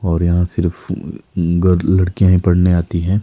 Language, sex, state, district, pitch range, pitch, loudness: Hindi, male, Himachal Pradesh, Shimla, 85-90 Hz, 90 Hz, -16 LUFS